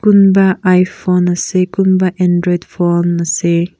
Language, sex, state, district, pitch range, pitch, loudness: Nagamese, female, Nagaland, Kohima, 175-185 Hz, 180 Hz, -13 LUFS